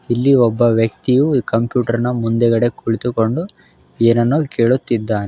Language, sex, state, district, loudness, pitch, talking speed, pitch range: Kannada, male, Karnataka, Belgaum, -16 LUFS, 120 Hz, 115 wpm, 115-125 Hz